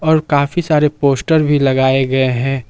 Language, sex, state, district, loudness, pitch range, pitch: Hindi, male, Jharkhand, Palamu, -14 LUFS, 130-155 Hz, 140 Hz